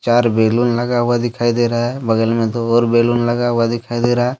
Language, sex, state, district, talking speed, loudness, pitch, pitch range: Hindi, male, Jharkhand, Deoghar, 260 wpm, -16 LUFS, 120 Hz, 115-120 Hz